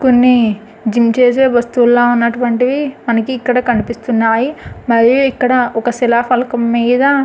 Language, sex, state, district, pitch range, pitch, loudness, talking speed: Telugu, female, Andhra Pradesh, Anantapur, 235-250 Hz, 240 Hz, -13 LUFS, 115 wpm